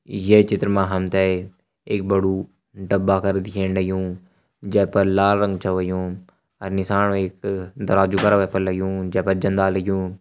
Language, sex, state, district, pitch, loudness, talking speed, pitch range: Hindi, male, Uttarakhand, Uttarkashi, 95 Hz, -21 LUFS, 175 wpm, 95-100 Hz